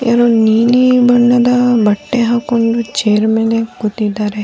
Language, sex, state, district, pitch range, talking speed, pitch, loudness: Kannada, female, Karnataka, Dharwad, 220-245 Hz, 120 wpm, 230 Hz, -12 LUFS